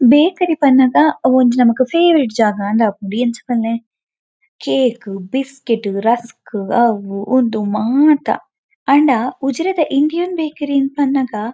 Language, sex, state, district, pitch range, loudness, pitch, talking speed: Tulu, female, Karnataka, Dakshina Kannada, 225-290 Hz, -15 LUFS, 255 Hz, 110 wpm